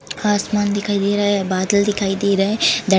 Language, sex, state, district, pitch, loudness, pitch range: Hindi, female, Uttar Pradesh, Jalaun, 200 Hz, -18 LUFS, 195-205 Hz